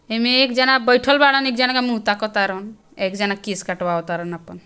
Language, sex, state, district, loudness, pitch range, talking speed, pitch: Bhojpuri, female, Bihar, Gopalganj, -18 LUFS, 190-255 Hz, 220 wpm, 215 Hz